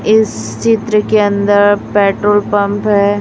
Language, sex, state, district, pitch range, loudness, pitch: Hindi, female, Chhattisgarh, Raipur, 205-215 Hz, -12 LUFS, 205 Hz